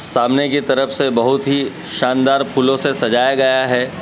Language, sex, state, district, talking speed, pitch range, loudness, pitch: Hindi, male, Madhya Pradesh, Dhar, 180 wpm, 130-140 Hz, -16 LUFS, 135 Hz